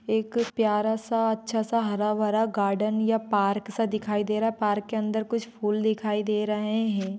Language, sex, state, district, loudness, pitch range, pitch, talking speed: Magahi, female, Bihar, Gaya, -26 LUFS, 210-225 Hz, 215 Hz, 190 wpm